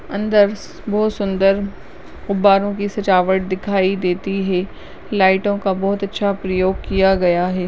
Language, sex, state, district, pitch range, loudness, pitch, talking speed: Hindi, female, Uttarakhand, Uttarkashi, 190-200 Hz, -18 LUFS, 195 Hz, 140 wpm